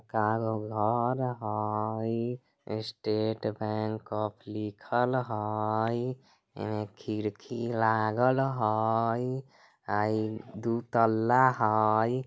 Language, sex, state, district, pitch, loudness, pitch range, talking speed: Bajjika, male, Bihar, Vaishali, 110 Hz, -30 LUFS, 110-120 Hz, 70 wpm